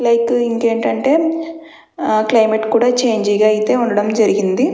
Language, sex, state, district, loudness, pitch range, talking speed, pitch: Telugu, female, Andhra Pradesh, Chittoor, -15 LUFS, 215-245 Hz, 115 wpm, 230 Hz